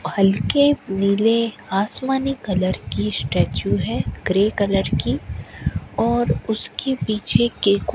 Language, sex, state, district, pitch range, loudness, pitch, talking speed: Hindi, female, Rajasthan, Bikaner, 195-235 Hz, -21 LUFS, 205 Hz, 120 wpm